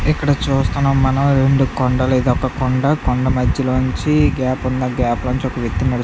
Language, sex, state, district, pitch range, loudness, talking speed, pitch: Telugu, male, Andhra Pradesh, Visakhapatnam, 125-135 Hz, -17 LUFS, 110 wpm, 130 Hz